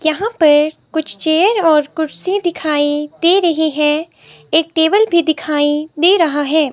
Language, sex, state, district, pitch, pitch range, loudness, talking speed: Hindi, female, Himachal Pradesh, Shimla, 315 Hz, 300-340 Hz, -14 LUFS, 150 wpm